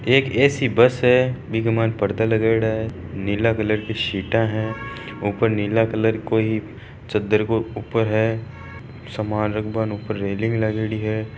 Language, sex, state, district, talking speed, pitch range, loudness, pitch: Marwari, male, Rajasthan, Churu, 160 wpm, 110-115 Hz, -21 LUFS, 110 Hz